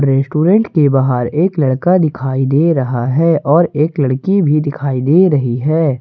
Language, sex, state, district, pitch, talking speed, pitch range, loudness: Hindi, male, Jharkhand, Ranchi, 145 Hz, 170 wpm, 135-165 Hz, -13 LUFS